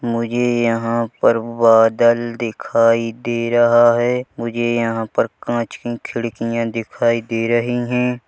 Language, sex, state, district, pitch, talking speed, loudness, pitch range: Hindi, male, Chhattisgarh, Bilaspur, 115 Hz, 130 wpm, -18 LUFS, 115-120 Hz